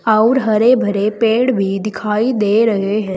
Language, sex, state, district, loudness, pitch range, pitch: Hindi, female, Uttar Pradesh, Saharanpur, -15 LUFS, 205-230 Hz, 215 Hz